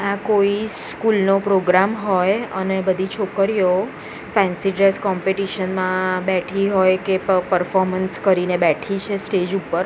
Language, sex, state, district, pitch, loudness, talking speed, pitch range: Gujarati, female, Gujarat, Gandhinagar, 190 Hz, -19 LUFS, 140 wpm, 185-200 Hz